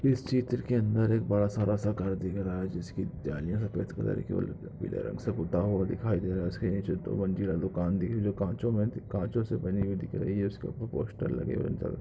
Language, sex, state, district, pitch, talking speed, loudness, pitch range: Hindi, male, Goa, North and South Goa, 100 Hz, 250 wpm, -31 LUFS, 95-110 Hz